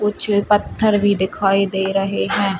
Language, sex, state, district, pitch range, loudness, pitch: Hindi, female, Chhattisgarh, Rajnandgaon, 195-205 Hz, -18 LUFS, 200 Hz